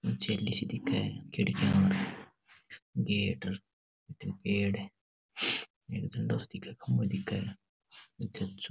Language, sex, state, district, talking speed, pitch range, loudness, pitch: Marwari, male, Rajasthan, Nagaur, 110 wpm, 65-100 Hz, -32 LUFS, 95 Hz